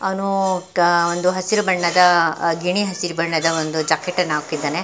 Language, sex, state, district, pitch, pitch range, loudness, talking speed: Kannada, female, Karnataka, Mysore, 175 Hz, 165-185 Hz, -18 LUFS, 160 wpm